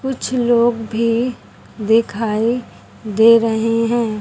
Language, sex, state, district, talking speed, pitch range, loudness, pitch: Hindi, female, Haryana, Charkhi Dadri, 100 wpm, 225-240 Hz, -16 LUFS, 230 Hz